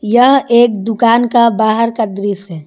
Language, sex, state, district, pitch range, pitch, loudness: Hindi, female, Jharkhand, Garhwa, 210-240 Hz, 230 Hz, -12 LUFS